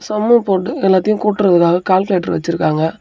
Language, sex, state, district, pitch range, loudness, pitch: Tamil, male, Tamil Nadu, Namakkal, 170-210 Hz, -14 LUFS, 185 Hz